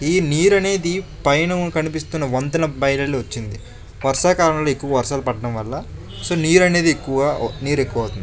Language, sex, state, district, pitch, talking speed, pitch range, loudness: Telugu, male, Andhra Pradesh, Chittoor, 140 Hz, 145 wpm, 120-165 Hz, -19 LUFS